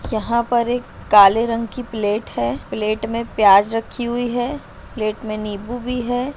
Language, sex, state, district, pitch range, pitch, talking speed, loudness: Hindi, female, Bihar, Madhepura, 215-245 Hz, 230 Hz, 180 wpm, -19 LUFS